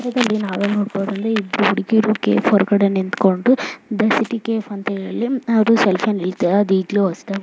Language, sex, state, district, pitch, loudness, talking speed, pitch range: Kannada, female, Karnataka, Mysore, 205 Hz, -18 LUFS, 65 wpm, 195-225 Hz